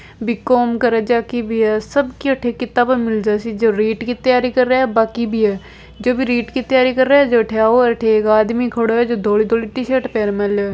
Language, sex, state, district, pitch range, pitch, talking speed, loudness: Hindi, female, Rajasthan, Nagaur, 220-250 Hz, 235 Hz, 220 wpm, -16 LUFS